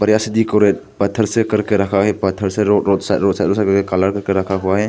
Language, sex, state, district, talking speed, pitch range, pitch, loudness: Hindi, male, Arunachal Pradesh, Papum Pare, 245 wpm, 100-105 Hz, 100 Hz, -16 LUFS